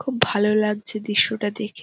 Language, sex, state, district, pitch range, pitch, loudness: Bengali, female, West Bengal, Dakshin Dinajpur, 205-215 Hz, 210 Hz, -22 LUFS